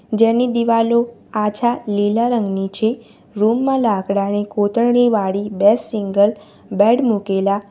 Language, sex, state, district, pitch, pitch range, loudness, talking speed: Gujarati, female, Gujarat, Valsad, 215 Hz, 205-235 Hz, -17 LUFS, 110 wpm